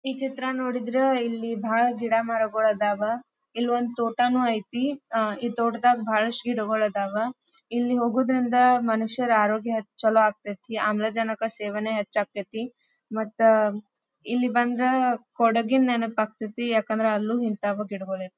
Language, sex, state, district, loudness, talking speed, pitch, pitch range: Kannada, female, Karnataka, Dharwad, -25 LUFS, 120 wpm, 230 Hz, 215-245 Hz